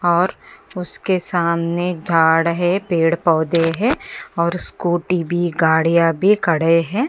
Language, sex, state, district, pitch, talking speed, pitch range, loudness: Hindi, male, Maharashtra, Aurangabad, 170 Hz, 125 wpm, 165-180 Hz, -18 LUFS